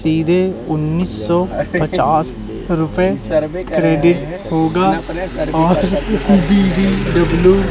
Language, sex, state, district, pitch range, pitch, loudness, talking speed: Hindi, male, Madhya Pradesh, Katni, 160-185 Hz, 175 Hz, -15 LUFS, 80 wpm